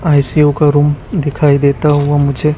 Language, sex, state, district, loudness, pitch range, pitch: Hindi, male, Chhattisgarh, Raipur, -12 LUFS, 140-150 Hz, 145 Hz